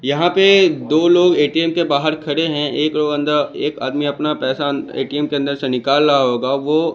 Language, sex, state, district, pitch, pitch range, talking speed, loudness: Hindi, male, Chandigarh, Chandigarh, 150 Hz, 140-160 Hz, 205 wpm, -16 LUFS